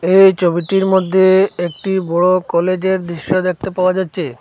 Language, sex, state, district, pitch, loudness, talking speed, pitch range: Bengali, male, Assam, Hailakandi, 185 Hz, -15 LUFS, 135 wpm, 175-190 Hz